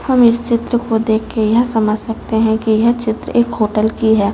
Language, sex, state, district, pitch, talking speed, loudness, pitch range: Hindi, female, Chhattisgarh, Raipur, 225 Hz, 235 wpm, -15 LUFS, 220-235 Hz